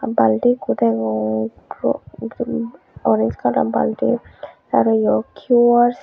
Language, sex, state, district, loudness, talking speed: Chakma, female, Tripura, Unakoti, -19 LUFS, 90 wpm